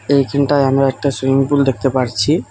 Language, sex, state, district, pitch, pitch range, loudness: Bengali, male, West Bengal, Alipurduar, 135 Hz, 130-140 Hz, -15 LUFS